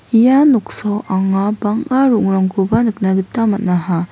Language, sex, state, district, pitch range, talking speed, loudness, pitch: Garo, female, Meghalaya, West Garo Hills, 190-230 Hz, 115 wpm, -15 LUFS, 205 Hz